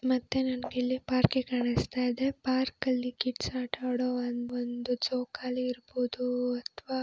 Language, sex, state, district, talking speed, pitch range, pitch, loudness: Kannada, female, Karnataka, Belgaum, 145 wpm, 245-255 Hz, 250 Hz, -31 LUFS